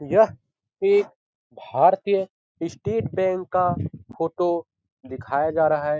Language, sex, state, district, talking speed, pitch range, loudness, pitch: Hindi, male, Bihar, Jahanabad, 110 wpm, 150-190 Hz, -23 LUFS, 175 Hz